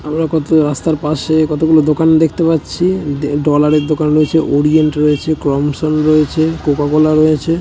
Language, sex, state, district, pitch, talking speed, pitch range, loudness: Bengali, male, West Bengal, Malda, 155 Hz, 150 wpm, 150-160 Hz, -13 LUFS